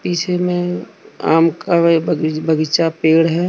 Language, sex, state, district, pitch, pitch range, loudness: Hindi, male, Jharkhand, Deoghar, 165 Hz, 160-175 Hz, -16 LUFS